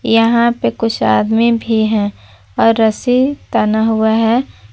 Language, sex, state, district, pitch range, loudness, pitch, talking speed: Hindi, female, Jharkhand, Palamu, 210-235 Hz, -14 LUFS, 225 Hz, 140 wpm